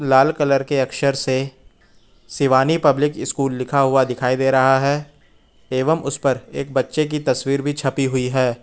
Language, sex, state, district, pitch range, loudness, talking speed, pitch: Hindi, male, Uttar Pradesh, Lucknow, 130-140 Hz, -19 LUFS, 175 wpm, 135 Hz